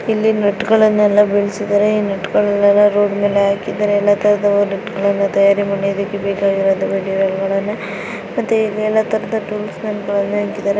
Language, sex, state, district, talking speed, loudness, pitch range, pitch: Kannada, female, Karnataka, Bijapur, 110 wpm, -16 LUFS, 200-210 Hz, 205 Hz